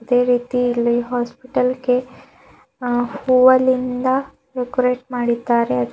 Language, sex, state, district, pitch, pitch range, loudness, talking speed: Kannada, female, Karnataka, Bidar, 250 Hz, 240-255 Hz, -18 LUFS, 80 wpm